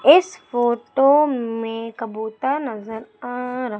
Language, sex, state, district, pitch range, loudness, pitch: Hindi, female, Madhya Pradesh, Umaria, 225-265 Hz, -21 LUFS, 240 Hz